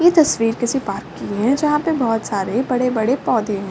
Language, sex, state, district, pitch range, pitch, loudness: Hindi, female, Uttar Pradesh, Ghazipur, 210-270 Hz, 240 Hz, -19 LUFS